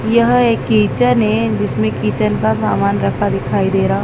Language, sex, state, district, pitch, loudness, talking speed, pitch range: Hindi, female, Madhya Pradesh, Dhar, 110 Hz, -15 LUFS, 180 wpm, 105-125 Hz